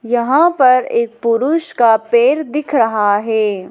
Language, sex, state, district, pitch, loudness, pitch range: Hindi, female, Madhya Pradesh, Dhar, 235 Hz, -14 LUFS, 225-275 Hz